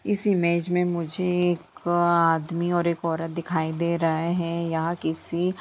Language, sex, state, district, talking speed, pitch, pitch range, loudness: Hindi, female, Bihar, Lakhisarai, 170 wpm, 170 Hz, 165-175 Hz, -24 LUFS